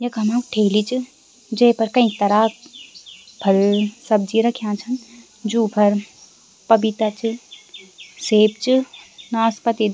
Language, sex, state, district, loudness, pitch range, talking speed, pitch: Garhwali, female, Uttarakhand, Tehri Garhwal, -19 LUFS, 210-235 Hz, 115 wpm, 220 Hz